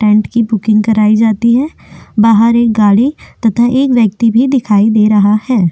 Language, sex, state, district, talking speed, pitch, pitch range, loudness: Hindi, female, Chhattisgarh, Korba, 180 wpm, 225 Hz, 215-235 Hz, -10 LUFS